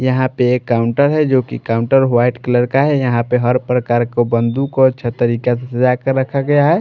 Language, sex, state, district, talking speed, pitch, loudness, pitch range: Hindi, male, Maharashtra, Washim, 230 wpm, 125 Hz, -15 LUFS, 120-135 Hz